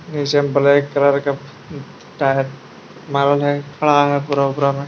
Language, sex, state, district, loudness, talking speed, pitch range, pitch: Hindi, male, Bihar, Jamui, -17 LUFS, 75 wpm, 140-145 Hz, 140 Hz